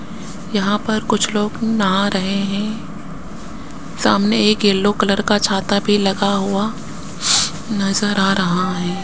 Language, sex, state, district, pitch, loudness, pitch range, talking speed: Hindi, male, Rajasthan, Jaipur, 205 Hz, -17 LUFS, 195-210 Hz, 135 wpm